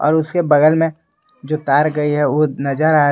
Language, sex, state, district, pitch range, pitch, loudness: Hindi, male, Jharkhand, Garhwa, 145-160 Hz, 155 Hz, -16 LUFS